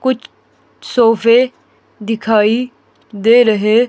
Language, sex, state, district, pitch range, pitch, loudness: Hindi, female, Himachal Pradesh, Shimla, 220-250 Hz, 230 Hz, -13 LUFS